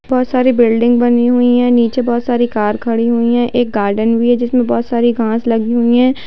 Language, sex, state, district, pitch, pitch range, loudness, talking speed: Hindi, female, Bihar, Darbhanga, 240 Hz, 230-245 Hz, -13 LUFS, 230 wpm